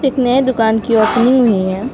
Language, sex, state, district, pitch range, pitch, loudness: Hindi, female, West Bengal, Alipurduar, 220-260 Hz, 240 Hz, -13 LUFS